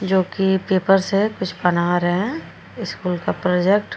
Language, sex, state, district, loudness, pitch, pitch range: Hindi, female, Uttar Pradesh, Jyotiba Phule Nagar, -20 LUFS, 190 Hz, 180-195 Hz